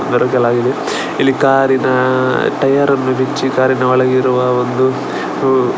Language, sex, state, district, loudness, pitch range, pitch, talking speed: Kannada, male, Karnataka, Dakshina Kannada, -14 LUFS, 125-135 Hz, 130 Hz, 95 wpm